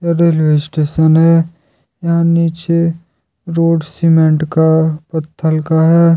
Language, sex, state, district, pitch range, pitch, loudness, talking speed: Hindi, male, Jharkhand, Deoghar, 160-170 Hz, 165 Hz, -13 LUFS, 105 wpm